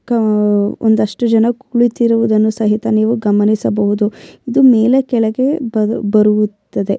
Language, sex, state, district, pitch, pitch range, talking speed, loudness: Kannada, female, Karnataka, Bellary, 220 Hz, 210-235 Hz, 110 wpm, -14 LUFS